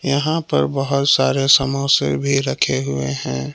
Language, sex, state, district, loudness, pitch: Hindi, male, Jharkhand, Palamu, -17 LUFS, 135 Hz